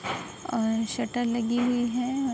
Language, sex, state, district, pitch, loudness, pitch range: Hindi, female, Uttar Pradesh, Budaun, 240 Hz, -28 LUFS, 230-245 Hz